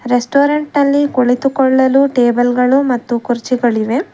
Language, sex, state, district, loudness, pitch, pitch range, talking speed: Kannada, female, Karnataka, Bangalore, -13 LUFS, 255 Hz, 245-275 Hz, 100 wpm